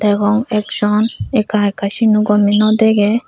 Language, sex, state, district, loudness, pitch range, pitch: Chakma, female, Tripura, Unakoti, -14 LUFS, 205-220 Hz, 210 Hz